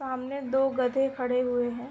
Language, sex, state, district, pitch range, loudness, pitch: Hindi, female, Uttar Pradesh, Ghazipur, 250-270 Hz, -28 LUFS, 260 Hz